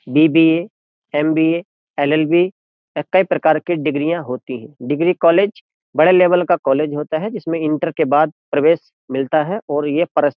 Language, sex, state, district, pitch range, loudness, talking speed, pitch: Hindi, male, Uttar Pradesh, Jyotiba Phule Nagar, 150-175 Hz, -17 LUFS, 160 wpm, 155 Hz